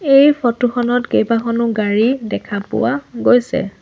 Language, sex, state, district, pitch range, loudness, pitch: Assamese, female, Assam, Sonitpur, 230-255 Hz, -16 LUFS, 240 Hz